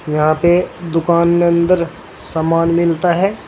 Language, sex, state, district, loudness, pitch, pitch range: Hindi, male, Uttar Pradesh, Saharanpur, -15 LUFS, 170 Hz, 165-175 Hz